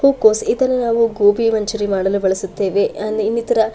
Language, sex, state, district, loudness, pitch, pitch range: Kannada, female, Karnataka, Shimoga, -17 LUFS, 215 Hz, 200-230 Hz